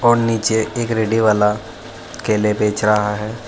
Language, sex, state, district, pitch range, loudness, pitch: Hindi, male, Uttar Pradesh, Saharanpur, 105-115 Hz, -17 LUFS, 110 Hz